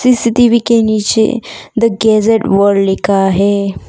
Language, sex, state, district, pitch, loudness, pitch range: Hindi, female, Arunachal Pradesh, Papum Pare, 220 Hz, -12 LUFS, 200-230 Hz